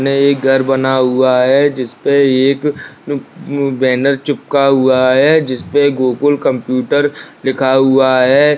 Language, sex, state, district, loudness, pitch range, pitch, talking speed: Hindi, male, Rajasthan, Nagaur, -13 LUFS, 130-140 Hz, 135 Hz, 140 wpm